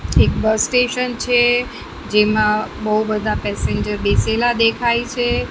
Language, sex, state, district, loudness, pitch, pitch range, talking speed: Gujarati, female, Maharashtra, Mumbai Suburban, -17 LUFS, 230 Hz, 215-245 Hz, 120 wpm